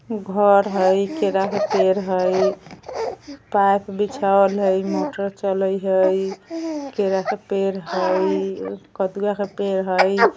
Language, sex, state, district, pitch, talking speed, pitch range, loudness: Bajjika, female, Bihar, Vaishali, 195 Hz, 115 wpm, 190-205 Hz, -20 LUFS